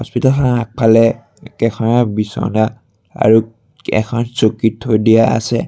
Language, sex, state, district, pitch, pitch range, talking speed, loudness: Assamese, male, Assam, Sonitpur, 115 Hz, 110-120 Hz, 105 wpm, -14 LUFS